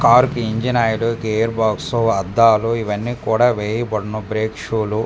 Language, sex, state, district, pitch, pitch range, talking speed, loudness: Telugu, male, Andhra Pradesh, Manyam, 110 Hz, 110-115 Hz, 165 wpm, -18 LUFS